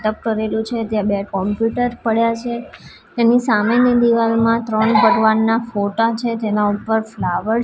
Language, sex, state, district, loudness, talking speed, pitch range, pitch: Gujarati, female, Gujarat, Gandhinagar, -17 LUFS, 150 wpm, 215-235 Hz, 225 Hz